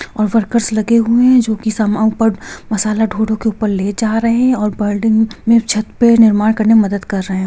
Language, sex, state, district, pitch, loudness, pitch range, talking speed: Hindi, female, Bihar, Gopalganj, 220 Hz, -14 LUFS, 215-225 Hz, 235 wpm